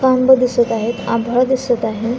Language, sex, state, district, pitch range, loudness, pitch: Marathi, female, Maharashtra, Aurangabad, 230-255 Hz, -16 LUFS, 245 Hz